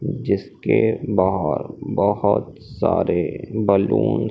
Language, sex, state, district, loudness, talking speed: Hindi, male, Madhya Pradesh, Umaria, -20 LUFS, 85 wpm